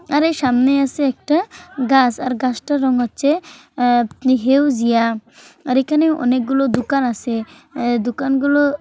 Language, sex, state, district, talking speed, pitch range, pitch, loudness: Bengali, female, West Bengal, Kolkata, 125 wpm, 245-290 Hz, 265 Hz, -17 LUFS